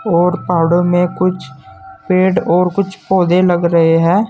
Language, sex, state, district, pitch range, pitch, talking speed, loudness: Hindi, male, Uttar Pradesh, Saharanpur, 165-185 Hz, 175 Hz, 155 wpm, -13 LUFS